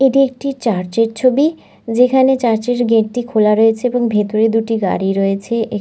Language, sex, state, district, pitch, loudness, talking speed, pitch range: Bengali, female, West Bengal, North 24 Parganas, 230 Hz, -15 LUFS, 185 wpm, 220-250 Hz